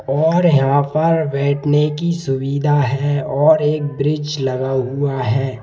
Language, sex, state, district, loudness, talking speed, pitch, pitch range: Hindi, male, Madhya Pradesh, Bhopal, -17 LUFS, 130 wpm, 145 Hz, 135-150 Hz